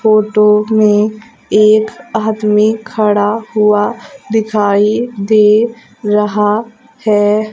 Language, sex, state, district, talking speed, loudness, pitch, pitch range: Hindi, female, Madhya Pradesh, Umaria, 80 wpm, -12 LUFS, 215 Hz, 210-220 Hz